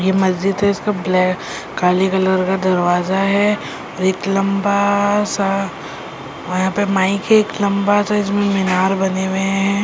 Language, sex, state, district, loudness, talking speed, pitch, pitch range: Hindi, female, Delhi, New Delhi, -17 LUFS, 150 wpm, 195 Hz, 190-200 Hz